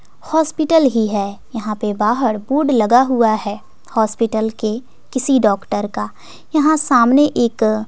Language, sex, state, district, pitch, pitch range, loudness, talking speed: Hindi, female, Bihar, West Champaran, 230 Hz, 215-270 Hz, -16 LUFS, 135 wpm